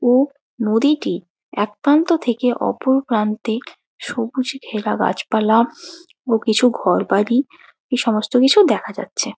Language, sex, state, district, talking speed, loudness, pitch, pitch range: Bengali, female, West Bengal, Jalpaiguri, 115 wpm, -18 LUFS, 245 Hz, 220-275 Hz